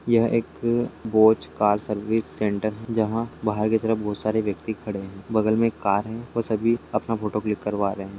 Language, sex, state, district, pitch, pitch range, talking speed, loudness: Hindi, male, Bihar, Jamui, 110 Hz, 105-115 Hz, 215 wpm, -24 LUFS